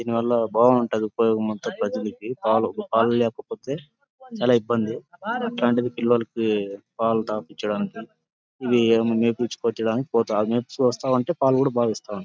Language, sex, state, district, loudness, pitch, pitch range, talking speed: Telugu, male, Andhra Pradesh, Anantapur, -23 LUFS, 115 Hz, 110-125 Hz, 125 wpm